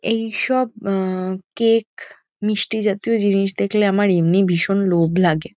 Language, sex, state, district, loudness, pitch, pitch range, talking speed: Bengali, female, West Bengal, Kolkata, -19 LUFS, 200 Hz, 185-220 Hz, 130 wpm